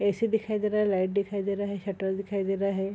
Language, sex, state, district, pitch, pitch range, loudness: Hindi, female, Bihar, Kishanganj, 200 Hz, 195-205 Hz, -28 LUFS